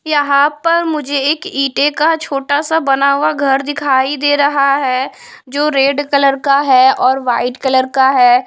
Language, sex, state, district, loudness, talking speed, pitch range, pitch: Hindi, female, Punjab, Pathankot, -13 LUFS, 175 wpm, 270-295 Hz, 280 Hz